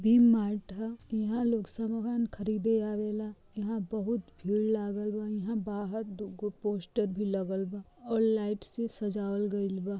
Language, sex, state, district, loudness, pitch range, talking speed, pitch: Bhojpuri, female, Bihar, Gopalganj, -32 LUFS, 205-225 Hz, 155 wpm, 210 Hz